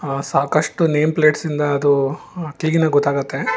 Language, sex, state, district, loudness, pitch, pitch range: Kannada, male, Karnataka, Bangalore, -18 LUFS, 150 Hz, 140-160 Hz